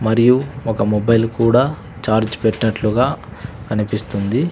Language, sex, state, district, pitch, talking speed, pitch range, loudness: Telugu, male, Andhra Pradesh, Sri Satya Sai, 115 Hz, 95 wpm, 110-125 Hz, -17 LUFS